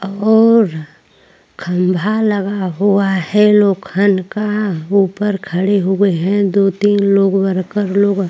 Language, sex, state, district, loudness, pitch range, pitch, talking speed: Hindi, female, Maharashtra, Chandrapur, -14 LUFS, 190-205 Hz, 200 Hz, 130 wpm